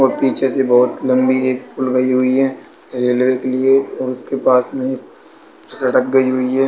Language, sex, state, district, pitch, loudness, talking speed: Hindi, male, Uttar Pradesh, Budaun, 130 Hz, -16 LUFS, 190 wpm